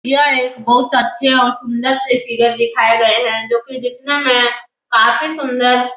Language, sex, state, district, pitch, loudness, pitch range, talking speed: Hindi, female, Bihar, Supaul, 250 Hz, -14 LUFS, 235-260 Hz, 180 wpm